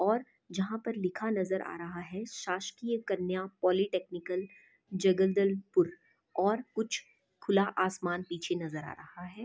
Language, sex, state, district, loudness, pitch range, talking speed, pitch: Hindi, female, Chhattisgarh, Bastar, -33 LUFS, 180-205 Hz, 140 wpm, 190 Hz